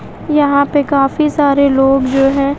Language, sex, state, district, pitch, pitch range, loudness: Hindi, female, Bihar, West Champaran, 280 Hz, 270-290 Hz, -12 LUFS